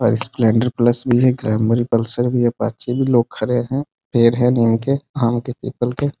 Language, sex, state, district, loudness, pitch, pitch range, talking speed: Hindi, male, Bihar, Muzaffarpur, -17 LUFS, 120 Hz, 115-125 Hz, 230 wpm